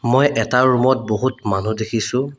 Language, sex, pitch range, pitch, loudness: Assamese, male, 110-130 Hz, 125 Hz, -18 LUFS